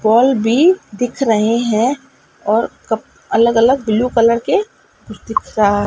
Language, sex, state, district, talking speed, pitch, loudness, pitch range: Hindi, female, Madhya Pradesh, Dhar, 155 wpm, 235 Hz, -15 LUFS, 220-265 Hz